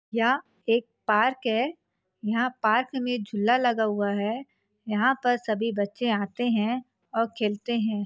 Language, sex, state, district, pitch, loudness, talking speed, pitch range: Hindi, female, Chhattisgarh, Bastar, 230 Hz, -26 LUFS, 150 wpm, 210-245 Hz